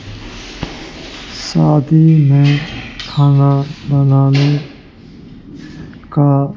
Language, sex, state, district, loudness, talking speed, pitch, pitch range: Hindi, male, Rajasthan, Jaipur, -12 LUFS, 55 wpm, 140 Hz, 140-145 Hz